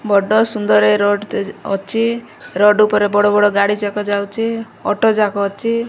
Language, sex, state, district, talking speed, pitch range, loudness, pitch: Odia, female, Odisha, Malkangiri, 165 wpm, 200-225 Hz, -15 LUFS, 205 Hz